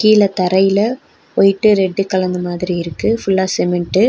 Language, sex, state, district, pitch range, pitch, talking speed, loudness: Tamil, female, Tamil Nadu, Nilgiris, 180-210 Hz, 190 Hz, 145 wpm, -15 LUFS